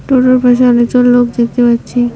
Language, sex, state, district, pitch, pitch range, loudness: Bengali, female, West Bengal, Cooch Behar, 245 Hz, 240-250 Hz, -10 LUFS